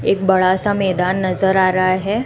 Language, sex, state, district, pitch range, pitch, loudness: Hindi, female, Gujarat, Gandhinagar, 185-195 Hz, 190 Hz, -16 LUFS